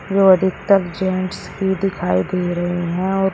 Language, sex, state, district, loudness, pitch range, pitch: Hindi, male, Uttar Pradesh, Shamli, -18 LUFS, 175-195 Hz, 185 Hz